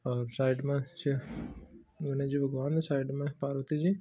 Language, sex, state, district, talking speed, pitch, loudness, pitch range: Marwari, male, Rajasthan, Churu, 165 wpm, 140 Hz, -33 LUFS, 135-145 Hz